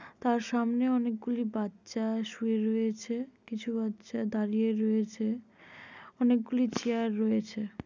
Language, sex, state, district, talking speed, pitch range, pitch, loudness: Bengali, female, West Bengal, Malda, 105 wpm, 220-235 Hz, 225 Hz, -31 LUFS